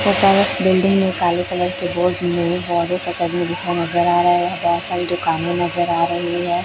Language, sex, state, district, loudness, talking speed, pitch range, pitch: Hindi, male, Chhattisgarh, Raipur, -18 LUFS, 180 wpm, 175-180 Hz, 175 Hz